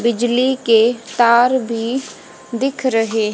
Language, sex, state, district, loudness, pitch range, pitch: Hindi, female, Haryana, Jhajjar, -16 LUFS, 230-260 Hz, 235 Hz